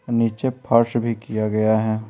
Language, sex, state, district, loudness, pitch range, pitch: Hindi, male, Bihar, Patna, -21 LUFS, 110-115 Hz, 115 Hz